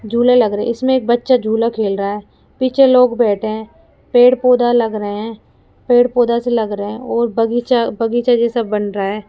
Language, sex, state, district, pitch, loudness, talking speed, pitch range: Hindi, female, Rajasthan, Jaipur, 235 Hz, -15 LUFS, 195 wpm, 215-245 Hz